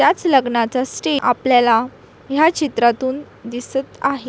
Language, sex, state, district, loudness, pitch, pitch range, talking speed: Marathi, female, Maharashtra, Solapur, -17 LUFS, 260 Hz, 245-275 Hz, 110 wpm